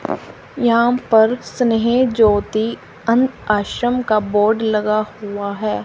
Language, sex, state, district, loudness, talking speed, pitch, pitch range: Hindi, female, Haryana, Rohtak, -17 LUFS, 115 wpm, 220 Hz, 210-240 Hz